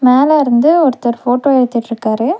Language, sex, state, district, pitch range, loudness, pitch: Tamil, female, Tamil Nadu, Nilgiris, 235-280 Hz, -12 LUFS, 250 Hz